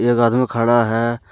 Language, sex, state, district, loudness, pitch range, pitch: Hindi, male, Jharkhand, Deoghar, -17 LUFS, 115-120 Hz, 120 Hz